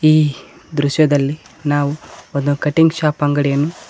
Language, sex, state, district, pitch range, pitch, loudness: Kannada, male, Karnataka, Koppal, 145-155 Hz, 145 Hz, -17 LUFS